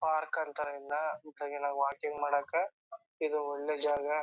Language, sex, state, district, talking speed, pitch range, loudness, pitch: Kannada, male, Karnataka, Chamarajanagar, 125 wpm, 145-155 Hz, -34 LUFS, 150 Hz